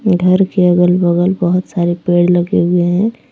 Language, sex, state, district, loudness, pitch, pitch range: Hindi, female, Jharkhand, Deoghar, -13 LUFS, 180 Hz, 175-185 Hz